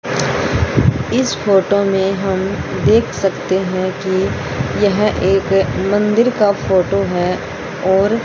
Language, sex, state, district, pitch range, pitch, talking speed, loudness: Hindi, female, Haryana, Rohtak, 185-205 Hz, 195 Hz, 110 wpm, -16 LUFS